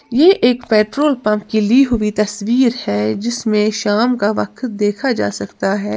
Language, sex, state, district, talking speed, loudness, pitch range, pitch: Hindi, female, Uttar Pradesh, Lalitpur, 160 wpm, -16 LUFS, 205-245 Hz, 215 Hz